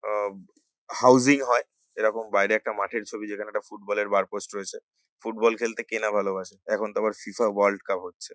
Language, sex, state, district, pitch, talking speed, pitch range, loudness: Bengali, male, West Bengal, North 24 Parganas, 110 Hz, 195 wpm, 105-115 Hz, -25 LUFS